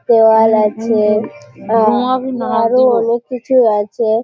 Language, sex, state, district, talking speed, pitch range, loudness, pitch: Bengali, female, West Bengal, Malda, 100 wpm, 220-245 Hz, -13 LUFS, 225 Hz